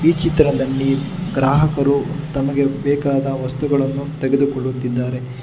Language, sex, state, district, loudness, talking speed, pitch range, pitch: Kannada, male, Karnataka, Bangalore, -18 LUFS, 75 wpm, 135-145 Hz, 140 Hz